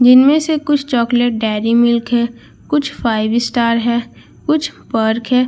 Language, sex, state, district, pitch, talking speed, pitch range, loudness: Hindi, female, Bihar, Katihar, 240 Hz, 155 wpm, 230-280 Hz, -15 LUFS